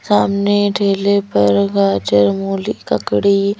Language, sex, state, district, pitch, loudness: Hindi, female, Madhya Pradesh, Bhopal, 195 Hz, -15 LUFS